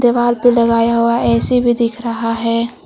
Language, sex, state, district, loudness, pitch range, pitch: Hindi, female, Jharkhand, Palamu, -14 LUFS, 230-240 Hz, 235 Hz